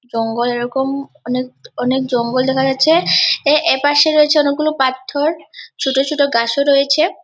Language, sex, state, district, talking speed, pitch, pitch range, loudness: Bengali, female, West Bengal, Purulia, 150 wpm, 270 Hz, 255-295 Hz, -15 LUFS